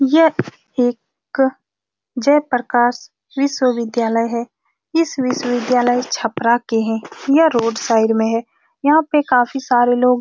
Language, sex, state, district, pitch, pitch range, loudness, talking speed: Hindi, female, Bihar, Saran, 245 Hz, 235-275 Hz, -17 LUFS, 125 wpm